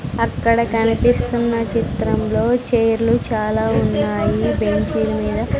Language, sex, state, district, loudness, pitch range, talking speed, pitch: Telugu, female, Andhra Pradesh, Sri Satya Sai, -18 LUFS, 220-235 Hz, 85 wpm, 225 Hz